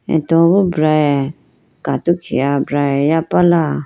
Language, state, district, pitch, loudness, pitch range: Idu Mishmi, Arunachal Pradesh, Lower Dibang Valley, 155 Hz, -15 LUFS, 140-170 Hz